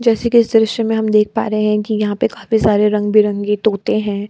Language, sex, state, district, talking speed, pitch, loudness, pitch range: Hindi, female, Bihar, Kishanganj, 250 wpm, 215 Hz, -15 LUFS, 210-225 Hz